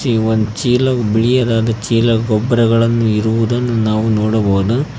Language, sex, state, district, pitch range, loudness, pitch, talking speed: Kannada, male, Karnataka, Koppal, 110-120 Hz, -14 LUFS, 115 Hz, 110 wpm